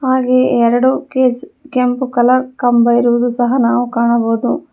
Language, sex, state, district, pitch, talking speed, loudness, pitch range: Kannada, female, Karnataka, Bangalore, 250 Hz, 125 wpm, -13 LUFS, 240-260 Hz